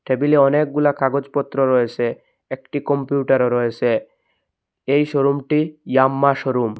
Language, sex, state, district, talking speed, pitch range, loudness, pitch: Bengali, male, Assam, Hailakandi, 105 wpm, 130-145 Hz, -19 LUFS, 140 Hz